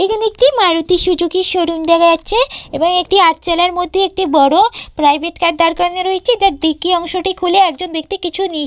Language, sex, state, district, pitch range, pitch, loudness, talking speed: Bengali, female, West Bengal, Purulia, 335-380 Hz, 360 Hz, -13 LUFS, 195 wpm